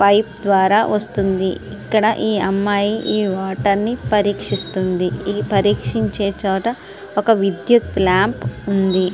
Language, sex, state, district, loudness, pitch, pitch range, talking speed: Telugu, female, Andhra Pradesh, Srikakulam, -17 LUFS, 200 Hz, 190-210 Hz, 105 wpm